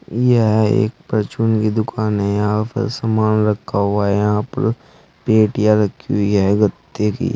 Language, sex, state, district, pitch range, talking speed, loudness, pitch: Hindi, male, Uttar Pradesh, Saharanpur, 105-115 Hz, 165 wpm, -17 LUFS, 110 Hz